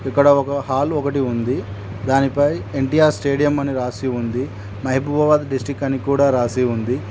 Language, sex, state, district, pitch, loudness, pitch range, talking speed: Telugu, male, Telangana, Mahabubabad, 135 Hz, -19 LUFS, 125-140 Hz, 145 wpm